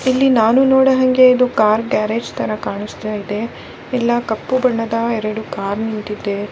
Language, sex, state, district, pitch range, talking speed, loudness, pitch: Kannada, female, Karnataka, Bellary, 215-255 Hz, 120 wpm, -16 LUFS, 225 Hz